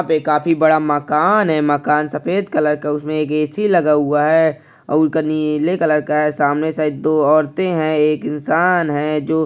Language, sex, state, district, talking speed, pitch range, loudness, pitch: Hindi, male, Maharashtra, Pune, 190 wpm, 150-160 Hz, -16 LUFS, 155 Hz